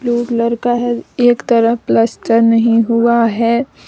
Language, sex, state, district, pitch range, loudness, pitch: Hindi, female, Jharkhand, Deoghar, 230-240 Hz, -13 LUFS, 235 Hz